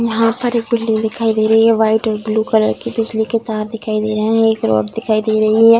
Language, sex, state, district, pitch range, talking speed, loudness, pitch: Hindi, female, Bihar, Darbhanga, 215-225 Hz, 270 wpm, -15 LUFS, 220 Hz